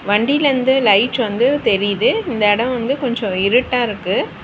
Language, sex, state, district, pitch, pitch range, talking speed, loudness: Tamil, female, Tamil Nadu, Chennai, 240 Hz, 205-255 Hz, 135 wpm, -16 LUFS